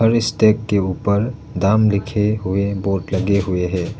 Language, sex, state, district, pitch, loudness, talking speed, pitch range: Hindi, male, Arunachal Pradesh, Lower Dibang Valley, 100 Hz, -18 LUFS, 135 wpm, 95-110 Hz